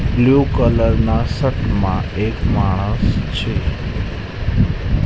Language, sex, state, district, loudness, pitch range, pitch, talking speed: Gujarati, male, Gujarat, Gandhinagar, -18 LUFS, 100-115 Hz, 105 Hz, 95 wpm